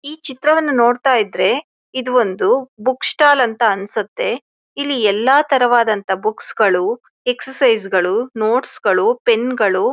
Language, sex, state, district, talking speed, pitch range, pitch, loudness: Kannada, female, Karnataka, Shimoga, 120 wpm, 225-285 Hz, 255 Hz, -16 LUFS